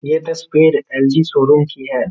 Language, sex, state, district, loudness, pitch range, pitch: Hindi, male, Bihar, Gopalganj, -14 LUFS, 140-160 Hz, 150 Hz